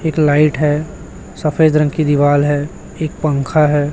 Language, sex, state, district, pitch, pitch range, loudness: Hindi, male, Chhattisgarh, Raipur, 150 Hz, 145-155 Hz, -15 LUFS